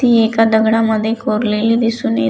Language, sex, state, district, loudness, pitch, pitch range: Marathi, female, Maharashtra, Dhule, -14 LUFS, 225 Hz, 215-225 Hz